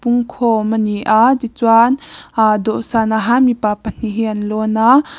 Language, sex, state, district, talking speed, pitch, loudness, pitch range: Mizo, female, Mizoram, Aizawl, 150 wpm, 225 Hz, -15 LUFS, 220-240 Hz